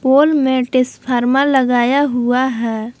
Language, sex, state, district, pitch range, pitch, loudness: Hindi, female, Jharkhand, Palamu, 245-270 Hz, 255 Hz, -15 LUFS